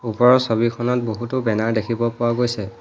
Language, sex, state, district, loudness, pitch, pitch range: Assamese, male, Assam, Hailakandi, -20 LUFS, 115 Hz, 115-120 Hz